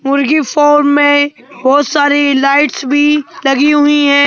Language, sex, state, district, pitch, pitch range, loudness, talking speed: Hindi, male, Madhya Pradesh, Bhopal, 285 Hz, 280-295 Hz, -10 LUFS, 140 wpm